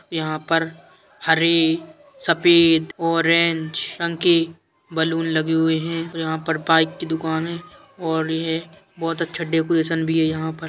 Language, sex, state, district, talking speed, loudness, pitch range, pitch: Bundeli, male, Uttar Pradesh, Jalaun, 150 wpm, -20 LUFS, 160-170 Hz, 165 Hz